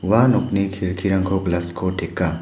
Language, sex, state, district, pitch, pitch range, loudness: Garo, male, Meghalaya, West Garo Hills, 95 Hz, 90-100 Hz, -21 LUFS